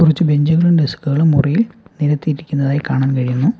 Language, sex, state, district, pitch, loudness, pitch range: Malayalam, male, Kerala, Kollam, 150 Hz, -16 LUFS, 140-160 Hz